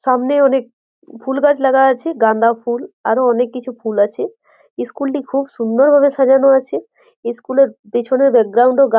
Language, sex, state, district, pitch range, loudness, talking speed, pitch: Bengali, female, West Bengal, Jhargram, 240-275 Hz, -15 LUFS, 175 wpm, 265 Hz